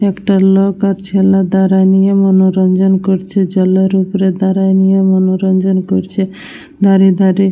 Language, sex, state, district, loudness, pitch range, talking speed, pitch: Bengali, female, West Bengal, Dakshin Dinajpur, -11 LUFS, 190-195 Hz, 150 wpm, 190 Hz